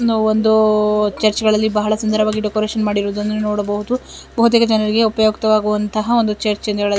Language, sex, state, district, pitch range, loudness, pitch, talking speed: Kannada, female, Karnataka, Belgaum, 210-220 Hz, -16 LUFS, 215 Hz, 155 wpm